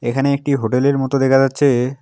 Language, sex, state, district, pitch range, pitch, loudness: Bengali, male, West Bengal, Alipurduar, 125-140 Hz, 135 Hz, -16 LUFS